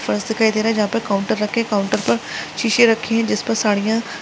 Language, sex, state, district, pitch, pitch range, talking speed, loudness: Hindi, female, Chhattisgarh, Sarguja, 220 Hz, 210-230 Hz, 240 wpm, -18 LUFS